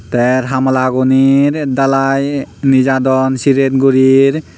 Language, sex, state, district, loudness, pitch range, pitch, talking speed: Chakma, male, Tripura, Unakoti, -12 LUFS, 130-135 Hz, 135 Hz, 80 wpm